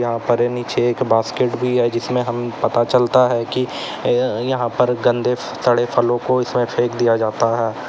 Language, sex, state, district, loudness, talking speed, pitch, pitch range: Hindi, male, Uttar Pradesh, Lalitpur, -18 LUFS, 190 wpm, 120 Hz, 120-125 Hz